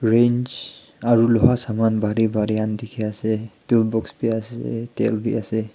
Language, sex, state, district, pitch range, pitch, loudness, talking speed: Nagamese, male, Nagaland, Kohima, 110-115 Hz, 115 Hz, -21 LUFS, 165 wpm